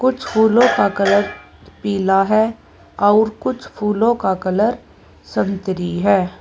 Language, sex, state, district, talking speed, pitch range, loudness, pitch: Hindi, female, Uttar Pradesh, Saharanpur, 120 wpm, 195-220 Hz, -17 LUFS, 205 Hz